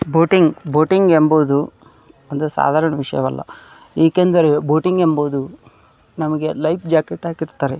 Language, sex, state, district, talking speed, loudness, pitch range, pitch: Kannada, male, Karnataka, Dharwad, 100 wpm, -16 LUFS, 150-165 Hz, 155 Hz